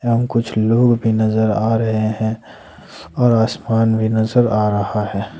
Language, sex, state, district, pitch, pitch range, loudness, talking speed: Hindi, male, Jharkhand, Ranchi, 110 Hz, 110-115 Hz, -17 LUFS, 165 wpm